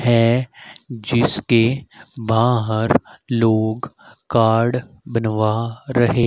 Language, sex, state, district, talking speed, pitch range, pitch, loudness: Hindi, male, Haryana, Rohtak, 65 wpm, 115-120 Hz, 115 Hz, -19 LUFS